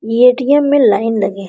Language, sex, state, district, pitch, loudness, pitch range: Hindi, female, Bihar, Araria, 230 Hz, -12 LUFS, 205-275 Hz